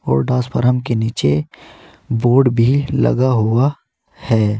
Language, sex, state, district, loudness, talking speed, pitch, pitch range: Hindi, male, Uttar Pradesh, Saharanpur, -16 LUFS, 120 wpm, 120 Hz, 110-130 Hz